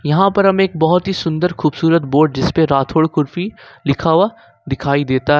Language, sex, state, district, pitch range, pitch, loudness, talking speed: Hindi, male, Jharkhand, Ranchi, 145-180 Hz, 160 Hz, -15 LUFS, 200 wpm